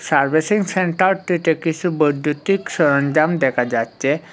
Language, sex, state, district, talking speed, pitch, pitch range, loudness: Bengali, male, Assam, Hailakandi, 95 wpm, 155 Hz, 140-180 Hz, -18 LUFS